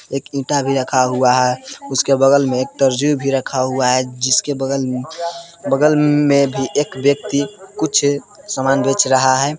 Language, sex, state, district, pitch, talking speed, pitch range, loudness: Hindi, male, Jharkhand, Palamu, 135 Hz, 175 wpm, 130-145 Hz, -16 LUFS